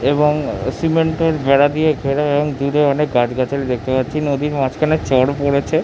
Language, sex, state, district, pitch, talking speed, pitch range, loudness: Bengali, male, West Bengal, Jhargram, 145 Hz, 165 wpm, 135-150 Hz, -17 LUFS